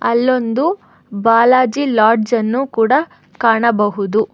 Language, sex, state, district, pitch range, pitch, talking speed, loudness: Kannada, female, Karnataka, Bangalore, 220-255 Hz, 235 Hz, 85 wpm, -14 LUFS